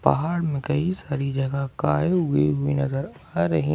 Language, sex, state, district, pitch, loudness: Hindi, male, Jharkhand, Ranchi, 135 Hz, -24 LUFS